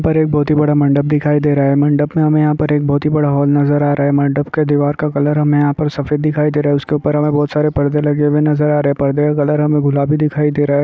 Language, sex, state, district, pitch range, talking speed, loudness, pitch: Hindi, male, Maharashtra, Nagpur, 145-150 Hz, 315 wpm, -14 LUFS, 150 Hz